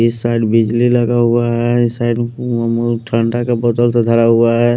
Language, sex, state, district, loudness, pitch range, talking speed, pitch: Hindi, male, Punjab, Pathankot, -14 LUFS, 115-120 Hz, 200 wpm, 120 Hz